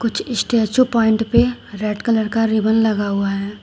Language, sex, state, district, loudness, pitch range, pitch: Hindi, female, Uttar Pradesh, Shamli, -18 LUFS, 210-230 Hz, 220 Hz